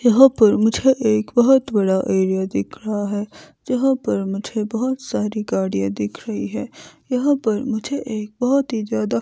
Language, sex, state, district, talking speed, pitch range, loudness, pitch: Hindi, female, Himachal Pradesh, Shimla, 160 wpm, 200-255 Hz, -20 LUFS, 220 Hz